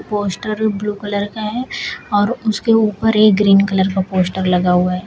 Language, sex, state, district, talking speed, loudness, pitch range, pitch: Hindi, female, Uttar Pradesh, Shamli, 190 wpm, -16 LUFS, 190-215 Hz, 205 Hz